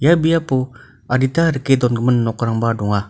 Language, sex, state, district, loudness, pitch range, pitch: Garo, male, Meghalaya, North Garo Hills, -17 LUFS, 115-135 Hz, 130 Hz